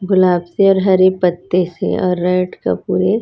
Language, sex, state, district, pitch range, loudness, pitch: Hindi, female, Chhattisgarh, Raipur, 180-190 Hz, -15 LUFS, 185 Hz